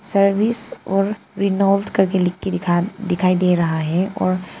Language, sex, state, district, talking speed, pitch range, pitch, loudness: Hindi, female, Arunachal Pradesh, Papum Pare, 155 wpm, 180-195 Hz, 190 Hz, -19 LUFS